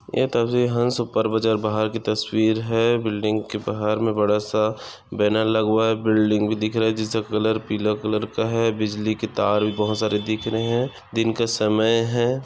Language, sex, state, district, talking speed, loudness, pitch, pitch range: Hindi, male, Maharashtra, Nagpur, 200 wpm, -22 LUFS, 110 Hz, 105-115 Hz